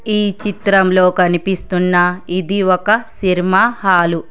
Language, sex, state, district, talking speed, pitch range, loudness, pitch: Telugu, male, Telangana, Hyderabad, 95 wpm, 180-200 Hz, -14 LUFS, 185 Hz